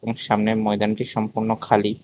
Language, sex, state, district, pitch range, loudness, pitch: Bengali, male, Tripura, West Tripura, 105-115 Hz, -22 LUFS, 110 Hz